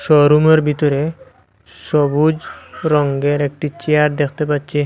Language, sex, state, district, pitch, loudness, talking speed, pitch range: Bengali, male, Assam, Hailakandi, 150 Hz, -16 LUFS, 125 wpm, 145-155 Hz